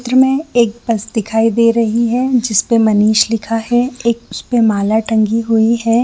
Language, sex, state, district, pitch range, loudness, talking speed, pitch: Hindi, female, Chhattisgarh, Bilaspur, 220-235 Hz, -14 LUFS, 180 wpm, 230 Hz